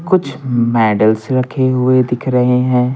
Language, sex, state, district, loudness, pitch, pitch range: Hindi, male, Bihar, Patna, -14 LUFS, 125 Hz, 120-130 Hz